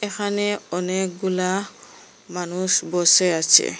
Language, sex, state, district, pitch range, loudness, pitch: Bengali, female, Assam, Hailakandi, 180-200 Hz, -20 LUFS, 185 Hz